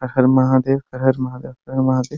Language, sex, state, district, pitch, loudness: Hindi, male, Bihar, Muzaffarpur, 130 Hz, -18 LUFS